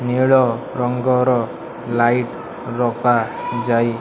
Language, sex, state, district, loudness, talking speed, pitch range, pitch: Odia, male, Odisha, Malkangiri, -18 LUFS, 90 wpm, 120-125 Hz, 120 Hz